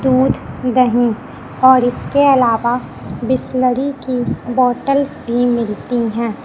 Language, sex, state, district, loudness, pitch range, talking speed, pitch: Hindi, male, Chhattisgarh, Raipur, -16 LUFS, 240-260 Hz, 100 wpm, 250 Hz